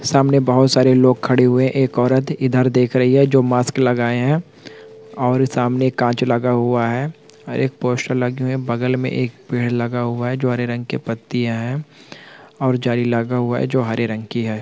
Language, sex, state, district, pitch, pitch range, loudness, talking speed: Hindi, male, Chhattisgarh, Jashpur, 125 Hz, 120-130 Hz, -18 LUFS, 210 wpm